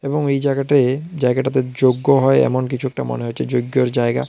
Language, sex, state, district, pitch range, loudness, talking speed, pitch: Bengali, male, Tripura, South Tripura, 125-140 Hz, -18 LUFS, 180 wpm, 130 Hz